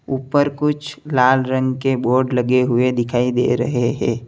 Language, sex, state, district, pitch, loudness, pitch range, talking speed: Hindi, male, Uttar Pradesh, Lalitpur, 130 Hz, -18 LUFS, 125-135 Hz, 170 wpm